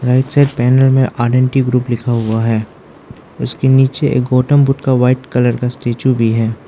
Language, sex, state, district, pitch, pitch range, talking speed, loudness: Hindi, male, Arunachal Pradesh, Lower Dibang Valley, 125 Hz, 120-130 Hz, 205 wpm, -13 LUFS